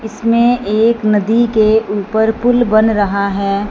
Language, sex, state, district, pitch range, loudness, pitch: Hindi, female, Punjab, Fazilka, 205-230 Hz, -13 LUFS, 220 Hz